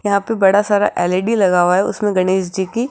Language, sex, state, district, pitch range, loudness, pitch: Hindi, female, Rajasthan, Jaipur, 185-205 Hz, -16 LUFS, 195 Hz